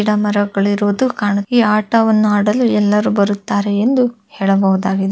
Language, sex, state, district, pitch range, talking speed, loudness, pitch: Kannada, female, Karnataka, Bellary, 200-220 Hz, 115 wpm, -15 LUFS, 210 Hz